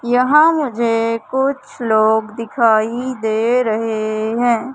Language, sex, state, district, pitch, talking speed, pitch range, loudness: Hindi, male, Madhya Pradesh, Katni, 230 Hz, 100 wpm, 220-250 Hz, -16 LUFS